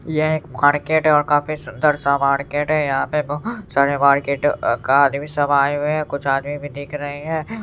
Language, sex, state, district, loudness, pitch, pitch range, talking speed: Hindi, male, Bihar, Supaul, -19 LUFS, 145 Hz, 140-150 Hz, 210 wpm